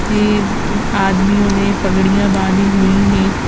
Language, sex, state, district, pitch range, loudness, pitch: Hindi, female, Uttar Pradesh, Hamirpur, 190-205 Hz, -14 LUFS, 195 Hz